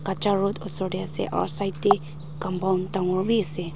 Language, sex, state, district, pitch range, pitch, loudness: Nagamese, female, Nagaland, Dimapur, 170-195 Hz, 185 Hz, -25 LUFS